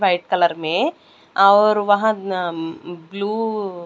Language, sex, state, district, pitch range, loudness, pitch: Hindi, male, Delhi, New Delhi, 175-215 Hz, -19 LUFS, 195 Hz